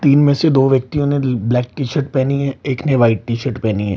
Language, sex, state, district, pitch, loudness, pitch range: Hindi, male, Bihar, Lakhisarai, 135 Hz, -16 LUFS, 120-140 Hz